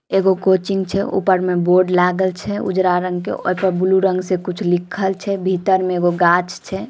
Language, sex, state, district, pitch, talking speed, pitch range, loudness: Maithili, female, Bihar, Samastipur, 185 Hz, 210 wpm, 180-190 Hz, -17 LUFS